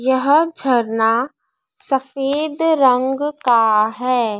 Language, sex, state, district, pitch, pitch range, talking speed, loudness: Hindi, female, Madhya Pradesh, Dhar, 260 Hz, 235-290 Hz, 80 wpm, -17 LUFS